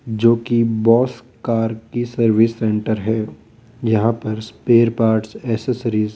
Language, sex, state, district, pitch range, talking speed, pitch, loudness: Hindi, male, Rajasthan, Jaipur, 110-115 Hz, 135 wpm, 115 Hz, -18 LUFS